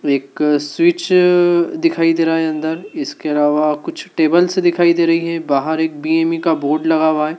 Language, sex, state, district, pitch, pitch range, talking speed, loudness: Hindi, male, Madhya Pradesh, Dhar, 165 Hz, 155-170 Hz, 180 wpm, -16 LUFS